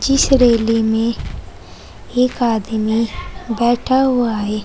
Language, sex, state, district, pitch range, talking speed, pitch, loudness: Hindi, female, Uttar Pradesh, Saharanpur, 225-250 Hz, 105 wpm, 230 Hz, -16 LUFS